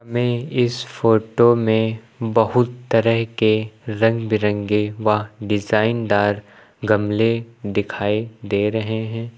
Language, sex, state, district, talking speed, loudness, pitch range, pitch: Hindi, male, Uttar Pradesh, Lucknow, 110 wpm, -20 LUFS, 105-115 Hz, 110 Hz